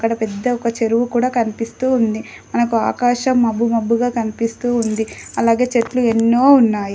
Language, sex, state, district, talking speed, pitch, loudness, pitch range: Telugu, female, Telangana, Adilabad, 145 wpm, 230 Hz, -17 LUFS, 225-245 Hz